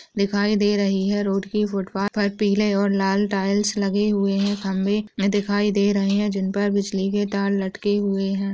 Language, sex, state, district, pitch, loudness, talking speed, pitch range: Hindi, female, Maharashtra, Chandrapur, 200 Hz, -22 LUFS, 195 wpm, 195-205 Hz